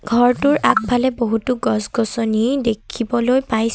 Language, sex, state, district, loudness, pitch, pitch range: Assamese, female, Assam, Sonitpur, -18 LUFS, 235 Hz, 225-250 Hz